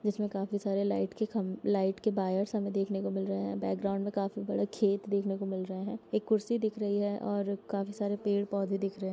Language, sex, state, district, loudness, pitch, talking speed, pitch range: Hindi, female, Jharkhand, Sahebganj, -33 LUFS, 200 Hz, 250 wpm, 195-205 Hz